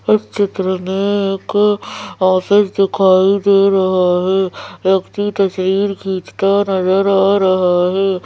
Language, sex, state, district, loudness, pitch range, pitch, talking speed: Hindi, female, Madhya Pradesh, Bhopal, -15 LUFS, 185-200 Hz, 195 Hz, 115 wpm